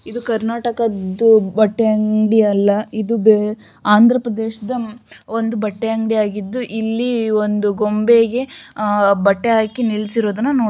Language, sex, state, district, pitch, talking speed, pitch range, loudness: Kannada, female, Karnataka, Shimoga, 220 Hz, 120 wpm, 210-230 Hz, -17 LUFS